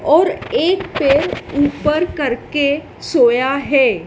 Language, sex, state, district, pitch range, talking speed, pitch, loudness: Hindi, female, Madhya Pradesh, Dhar, 275-315 Hz, 105 wpm, 285 Hz, -16 LUFS